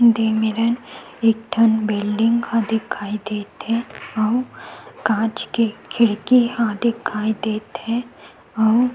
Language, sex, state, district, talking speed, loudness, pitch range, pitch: Chhattisgarhi, female, Chhattisgarh, Sukma, 125 wpm, -20 LUFS, 220-235 Hz, 225 Hz